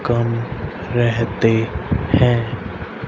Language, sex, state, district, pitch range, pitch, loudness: Hindi, male, Haryana, Rohtak, 95-120 Hz, 115 Hz, -19 LUFS